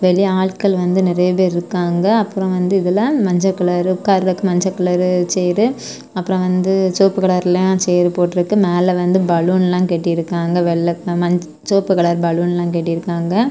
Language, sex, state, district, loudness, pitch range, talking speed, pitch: Tamil, female, Tamil Nadu, Kanyakumari, -16 LUFS, 175-190 Hz, 140 wpm, 180 Hz